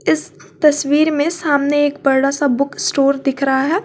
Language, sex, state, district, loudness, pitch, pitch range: Hindi, female, Jharkhand, Garhwa, -16 LUFS, 285 Hz, 275-300 Hz